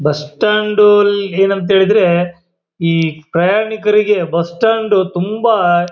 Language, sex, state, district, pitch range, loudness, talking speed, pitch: Kannada, male, Karnataka, Shimoga, 170-210 Hz, -13 LUFS, 90 wpm, 190 Hz